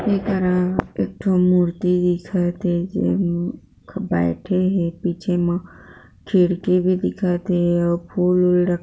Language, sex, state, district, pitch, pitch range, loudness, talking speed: Chhattisgarhi, female, Chhattisgarh, Jashpur, 180 Hz, 175-185 Hz, -20 LUFS, 135 wpm